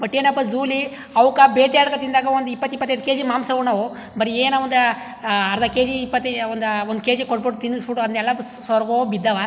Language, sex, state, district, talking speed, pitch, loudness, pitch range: Kannada, male, Karnataka, Chamarajanagar, 185 wpm, 250 Hz, -19 LUFS, 230-265 Hz